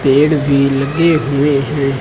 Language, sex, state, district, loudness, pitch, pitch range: Hindi, male, Uttar Pradesh, Lucknow, -13 LUFS, 140 Hz, 140-150 Hz